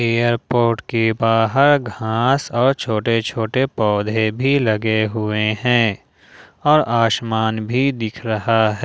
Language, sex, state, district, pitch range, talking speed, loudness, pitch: Hindi, male, Jharkhand, Ranchi, 110-125 Hz, 120 wpm, -18 LUFS, 115 Hz